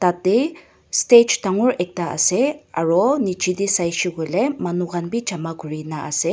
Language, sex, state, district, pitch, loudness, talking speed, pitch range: Nagamese, female, Nagaland, Dimapur, 180 Hz, -19 LUFS, 150 wpm, 170-235 Hz